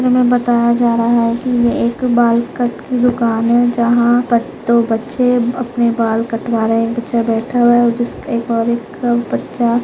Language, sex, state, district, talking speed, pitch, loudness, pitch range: Hindi, female, Maharashtra, Chandrapur, 185 wpm, 235 Hz, -15 LUFS, 235-240 Hz